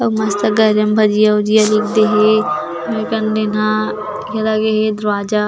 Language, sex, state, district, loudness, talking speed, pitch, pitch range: Chhattisgarhi, female, Chhattisgarh, Jashpur, -15 LUFS, 165 wpm, 215 Hz, 210-215 Hz